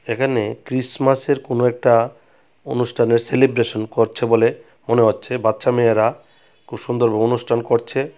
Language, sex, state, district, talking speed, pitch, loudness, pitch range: Bengali, male, Tripura, West Tripura, 130 wpm, 120 Hz, -18 LUFS, 115-130 Hz